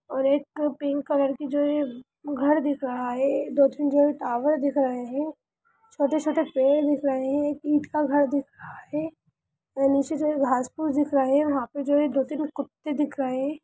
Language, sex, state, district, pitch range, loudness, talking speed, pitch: Hindi, female, Bihar, Jahanabad, 275-295 Hz, -25 LUFS, 215 wpm, 285 Hz